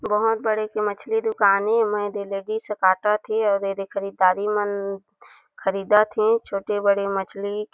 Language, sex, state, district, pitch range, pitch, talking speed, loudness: Chhattisgarhi, female, Chhattisgarh, Jashpur, 195-215 Hz, 205 Hz, 140 wpm, -22 LUFS